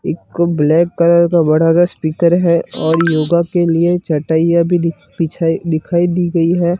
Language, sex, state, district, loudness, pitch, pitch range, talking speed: Hindi, male, Gujarat, Gandhinagar, -14 LUFS, 170 Hz, 165-175 Hz, 175 wpm